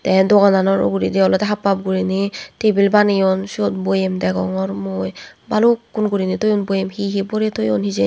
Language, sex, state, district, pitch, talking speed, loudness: Chakma, female, Tripura, West Tripura, 190 Hz, 165 wpm, -18 LUFS